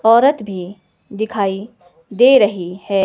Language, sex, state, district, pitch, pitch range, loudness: Hindi, female, Himachal Pradesh, Shimla, 200 Hz, 185-220 Hz, -15 LUFS